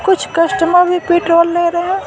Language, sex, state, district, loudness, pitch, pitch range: Hindi, female, Bihar, Patna, -13 LUFS, 345 Hz, 340-360 Hz